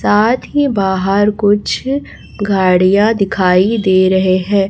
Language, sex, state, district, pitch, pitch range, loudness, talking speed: Hindi, female, Chhattisgarh, Raipur, 200 Hz, 190-210 Hz, -13 LUFS, 115 wpm